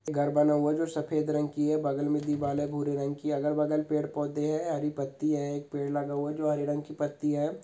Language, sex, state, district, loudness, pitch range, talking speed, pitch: Hindi, male, Goa, North and South Goa, -30 LUFS, 145-150 Hz, 265 wpm, 150 Hz